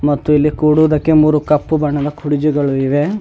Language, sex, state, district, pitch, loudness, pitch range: Kannada, male, Karnataka, Bidar, 150 Hz, -14 LUFS, 145-155 Hz